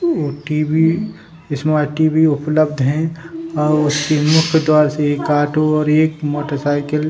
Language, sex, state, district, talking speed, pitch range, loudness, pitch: Hindi, male, Bihar, Jahanabad, 150 wpm, 150-160 Hz, -16 LUFS, 155 Hz